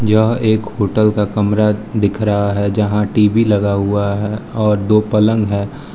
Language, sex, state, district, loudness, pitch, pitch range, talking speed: Hindi, male, Arunachal Pradesh, Lower Dibang Valley, -15 LUFS, 105 Hz, 100-110 Hz, 170 wpm